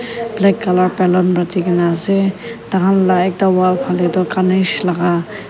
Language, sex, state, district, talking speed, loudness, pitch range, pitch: Nagamese, female, Nagaland, Kohima, 140 wpm, -15 LUFS, 180-195 Hz, 185 Hz